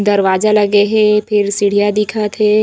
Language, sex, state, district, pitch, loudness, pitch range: Chhattisgarhi, female, Chhattisgarh, Raigarh, 210 Hz, -13 LUFS, 205-210 Hz